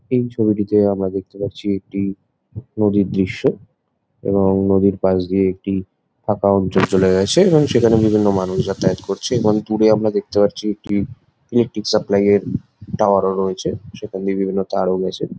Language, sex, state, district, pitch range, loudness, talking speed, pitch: Bengali, male, West Bengal, Jalpaiguri, 95-110 Hz, -18 LUFS, 155 wpm, 100 Hz